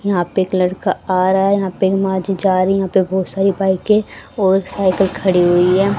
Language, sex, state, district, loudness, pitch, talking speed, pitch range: Hindi, female, Haryana, Rohtak, -16 LUFS, 190 Hz, 240 wpm, 185-195 Hz